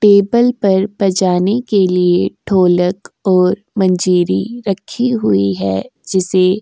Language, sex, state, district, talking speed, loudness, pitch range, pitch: Hindi, female, Uttar Pradesh, Jyotiba Phule Nagar, 120 wpm, -14 LUFS, 180-205 Hz, 190 Hz